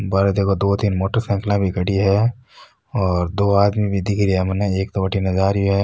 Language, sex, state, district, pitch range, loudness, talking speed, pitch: Rajasthani, male, Rajasthan, Nagaur, 95-100 Hz, -19 LUFS, 225 wpm, 100 Hz